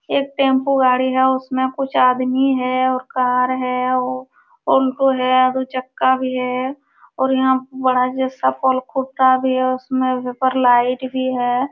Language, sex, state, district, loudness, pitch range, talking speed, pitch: Hindi, female, Uttar Pradesh, Jalaun, -18 LUFS, 255-260 Hz, 160 wpm, 260 Hz